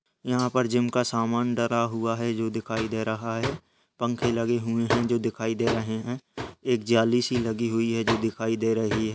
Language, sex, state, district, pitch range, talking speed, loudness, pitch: Hindi, male, Uttar Pradesh, Jalaun, 115-120 Hz, 215 wpm, -26 LUFS, 115 Hz